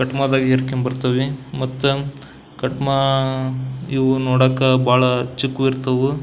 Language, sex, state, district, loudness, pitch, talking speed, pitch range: Kannada, male, Karnataka, Belgaum, -19 LUFS, 130 Hz, 105 wpm, 130-135 Hz